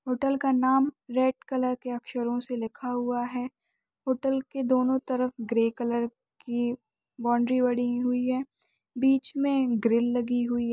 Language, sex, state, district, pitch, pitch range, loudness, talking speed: Hindi, female, Chhattisgarh, Sukma, 250 Hz, 240-260 Hz, -27 LUFS, 160 wpm